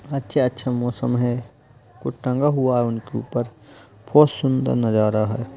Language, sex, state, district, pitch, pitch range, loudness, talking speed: Hindi, male, Maharashtra, Dhule, 125 Hz, 120-135 Hz, -21 LUFS, 150 wpm